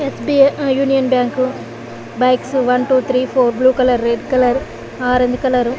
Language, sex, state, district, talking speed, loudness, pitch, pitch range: Telugu, female, Andhra Pradesh, Anantapur, 175 wpm, -15 LUFS, 255 Hz, 245-260 Hz